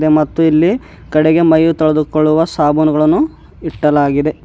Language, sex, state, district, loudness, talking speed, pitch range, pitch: Kannada, female, Karnataka, Bidar, -13 LUFS, 95 wpm, 155-165 Hz, 155 Hz